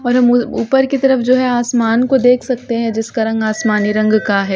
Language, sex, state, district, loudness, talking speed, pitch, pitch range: Hindi, female, Uttar Pradesh, Hamirpur, -14 LUFS, 250 wpm, 240 Hz, 220-250 Hz